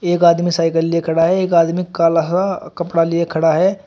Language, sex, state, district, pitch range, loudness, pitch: Hindi, male, Uttar Pradesh, Shamli, 165-175 Hz, -16 LUFS, 170 Hz